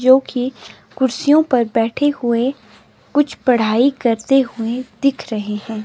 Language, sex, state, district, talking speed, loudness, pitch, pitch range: Hindi, female, Himachal Pradesh, Shimla, 135 wpm, -17 LUFS, 250 Hz, 225-270 Hz